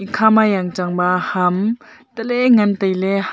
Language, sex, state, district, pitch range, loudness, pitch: Wancho, female, Arunachal Pradesh, Longding, 180-220 Hz, -16 LUFS, 195 Hz